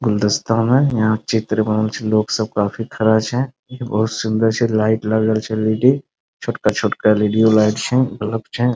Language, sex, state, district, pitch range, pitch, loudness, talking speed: Maithili, male, Bihar, Muzaffarpur, 110-120 Hz, 110 Hz, -17 LUFS, 170 wpm